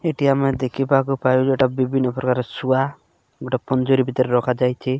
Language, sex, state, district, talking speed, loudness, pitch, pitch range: Odia, male, Odisha, Malkangiri, 145 wpm, -20 LUFS, 130 Hz, 130-135 Hz